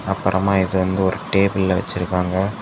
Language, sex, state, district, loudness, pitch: Tamil, male, Tamil Nadu, Kanyakumari, -19 LUFS, 95 Hz